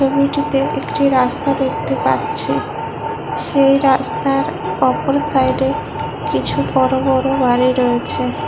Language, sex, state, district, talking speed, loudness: Bengali, female, West Bengal, Kolkata, 100 wpm, -16 LUFS